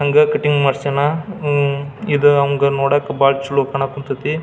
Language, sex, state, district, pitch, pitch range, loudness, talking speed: Kannada, male, Karnataka, Belgaum, 140 Hz, 140-145 Hz, -17 LUFS, 150 wpm